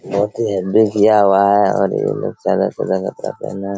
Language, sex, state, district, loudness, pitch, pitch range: Hindi, male, Chhattisgarh, Raigarh, -16 LUFS, 100 Hz, 100-105 Hz